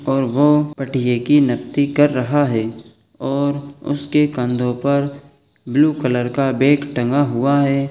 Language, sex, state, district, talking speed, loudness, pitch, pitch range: Hindi, male, Chhattisgarh, Sukma, 135 wpm, -18 LUFS, 140 Hz, 125-145 Hz